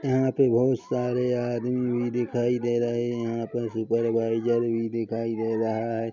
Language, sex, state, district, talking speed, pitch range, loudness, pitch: Hindi, male, Chhattisgarh, Korba, 175 wpm, 115-125 Hz, -26 LUFS, 120 Hz